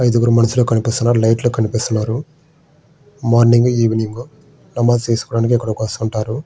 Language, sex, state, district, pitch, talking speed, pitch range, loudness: Telugu, male, Andhra Pradesh, Srikakulam, 120 Hz, 100 wpm, 115-125 Hz, -16 LUFS